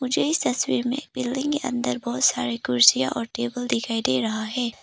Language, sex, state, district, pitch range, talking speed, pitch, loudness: Hindi, female, Arunachal Pradesh, Papum Pare, 220-255 Hz, 200 wpm, 240 Hz, -23 LUFS